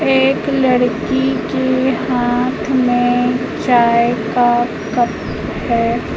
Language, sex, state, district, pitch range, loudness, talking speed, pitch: Hindi, female, Madhya Pradesh, Umaria, 240-255 Hz, -15 LUFS, 85 wpm, 245 Hz